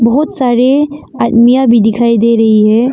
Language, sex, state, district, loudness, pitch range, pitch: Hindi, female, Arunachal Pradesh, Longding, -9 LUFS, 230-260 Hz, 235 Hz